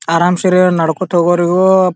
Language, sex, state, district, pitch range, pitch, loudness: Kannada, male, Karnataka, Bijapur, 170-185 Hz, 180 Hz, -12 LUFS